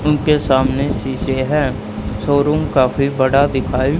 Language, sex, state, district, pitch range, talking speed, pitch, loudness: Hindi, male, Haryana, Charkhi Dadri, 130-145 Hz, 120 wpm, 135 Hz, -16 LUFS